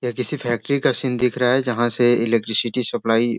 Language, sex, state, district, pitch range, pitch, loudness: Hindi, male, Bihar, Sitamarhi, 120-125 Hz, 120 Hz, -19 LUFS